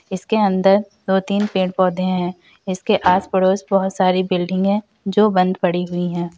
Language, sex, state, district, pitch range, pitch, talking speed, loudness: Hindi, female, Uttar Pradesh, Varanasi, 185-195 Hz, 190 Hz, 170 wpm, -18 LUFS